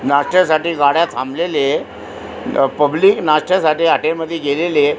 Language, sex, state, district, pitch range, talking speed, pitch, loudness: Marathi, male, Maharashtra, Aurangabad, 145-170 Hz, 130 wpm, 155 Hz, -15 LUFS